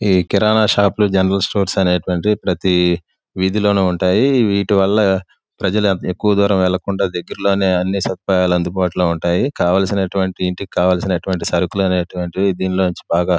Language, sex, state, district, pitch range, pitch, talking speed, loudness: Telugu, male, Andhra Pradesh, Guntur, 90-100 Hz, 95 Hz, 120 wpm, -16 LUFS